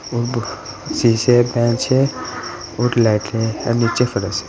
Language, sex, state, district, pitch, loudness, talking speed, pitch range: Hindi, male, Uttar Pradesh, Saharanpur, 115 Hz, -18 LUFS, 135 wpm, 110-120 Hz